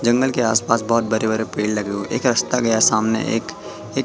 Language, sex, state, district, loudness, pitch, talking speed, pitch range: Hindi, male, Madhya Pradesh, Katni, -19 LUFS, 110 Hz, 235 wpm, 110-120 Hz